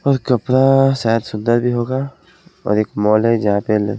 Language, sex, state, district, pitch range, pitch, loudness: Hindi, male, Haryana, Jhajjar, 105-135 Hz, 120 Hz, -16 LUFS